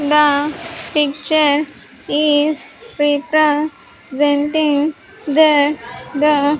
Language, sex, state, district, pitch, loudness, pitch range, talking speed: English, female, Andhra Pradesh, Sri Satya Sai, 300 Hz, -16 LUFS, 290-310 Hz, 65 wpm